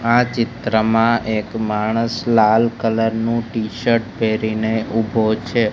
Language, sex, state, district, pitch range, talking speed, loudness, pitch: Gujarati, male, Gujarat, Gandhinagar, 110-115 Hz, 115 wpm, -18 LUFS, 115 Hz